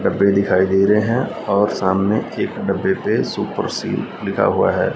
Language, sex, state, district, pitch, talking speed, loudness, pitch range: Hindi, male, Punjab, Fazilka, 100 Hz, 180 wpm, -18 LUFS, 95-105 Hz